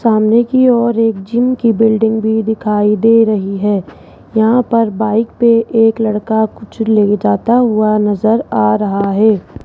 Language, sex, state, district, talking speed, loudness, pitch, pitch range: Hindi, female, Rajasthan, Jaipur, 160 wpm, -13 LUFS, 220 Hz, 210-230 Hz